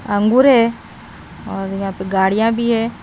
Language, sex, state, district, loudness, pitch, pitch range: Hindi, female, Himachal Pradesh, Shimla, -16 LUFS, 220 Hz, 195-235 Hz